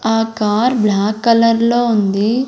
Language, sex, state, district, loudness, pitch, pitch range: Telugu, female, Andhra Pradesh, Sri Satya Sai, -14 LUFS, 225 Hz, 210-235 Hz